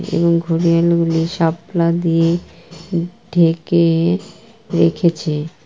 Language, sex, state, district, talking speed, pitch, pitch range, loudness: Bengali, female, West Bengal, Kolkata, 75 wpm, 170 Hz, 165-175 Hz, -17 LUFS